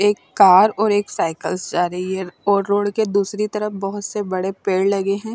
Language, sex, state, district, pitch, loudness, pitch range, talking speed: Hindi, female, Chandigarh, Chandigarh, 200 Hz, -19 LUFS, 190-205 Hz, 215 wpm